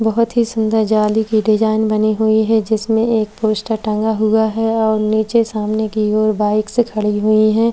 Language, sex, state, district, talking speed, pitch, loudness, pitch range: Hindi, female, Maharashtra, Chandrapur, 185 wpm, 220 Hz, -16 LUFS, 215-220 Hz